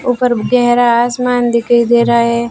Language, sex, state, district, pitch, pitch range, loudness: Hindi, female, Rajasthan, Bikaner, 240 Hz, 235-245 Hz, -12 LUFS